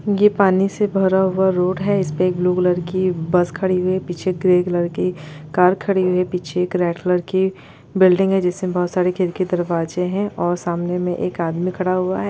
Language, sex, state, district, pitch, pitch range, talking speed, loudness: Hindi, female, Bihar, Gopalganj, 180 Hz, 175-190 Hz, 220 wpm, -19 LUFS